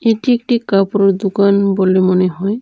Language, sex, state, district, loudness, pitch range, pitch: Bengali, female, Tripura, Dhalai, -14 LUFS, 195-220 Hz, 200 Hz